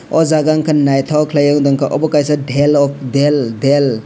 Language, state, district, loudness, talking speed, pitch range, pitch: Kokborok, Tripura, West Tripura, -13 LUFS, 190 wpm, 140-150 Hz, 145 Hz